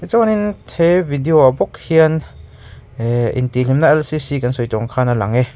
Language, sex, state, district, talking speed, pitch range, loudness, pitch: Mizo, male, Mizoram, Aizawl, 140 wpm, 120-160 Hz, -16 LUFS, 130 Hz